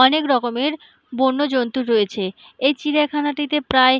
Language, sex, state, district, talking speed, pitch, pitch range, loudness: Bengali, female, West Bengal, Purulia, 120 wpm, 260 Hz, 250-295 Hz, -19 LUFS